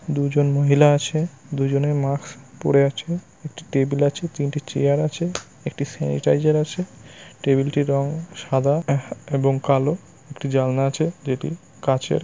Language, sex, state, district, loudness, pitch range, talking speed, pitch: Bengali, male, West Bengal, North 24 Parganas, -22 LUFS, 135-155 Hz, 145 wpm, 140 Hz